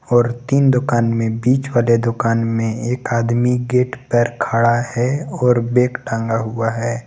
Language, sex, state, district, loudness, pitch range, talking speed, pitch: Hindi, male, Jharkhand, Garhwa, -17 LUFS, 115-125 Hz, 160 wpm, 120 Hz